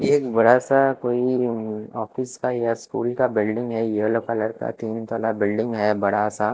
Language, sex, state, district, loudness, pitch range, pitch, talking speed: Hindi, male, Chhattisgarh, Raipur, -22 LUFS, 110-125 Hz, 115 Hz, 185 wpm